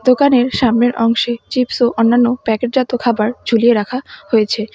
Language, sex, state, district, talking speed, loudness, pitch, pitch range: Bengali, female, West Bengal, Alipurduar, 140 wpm, -15 LUFS, 240 Hz, 230-250 Hz